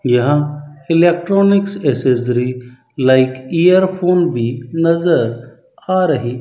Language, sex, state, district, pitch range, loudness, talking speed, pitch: Hindi, male, Rajasthan, Bikaner, 125-175 Hz, -15 LUFS, 95 wpm, 145 Hz